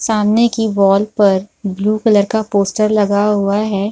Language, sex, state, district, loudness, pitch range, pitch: Hindi, female, Bihar, Supaul, -14 LUFS, 200-215 Hz, 210 Hz